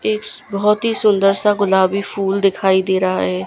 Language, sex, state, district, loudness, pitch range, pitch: Hindi, female, Gujarat, Gandhinagar, -16 LUFS, 190-210 Hz, 200 Hz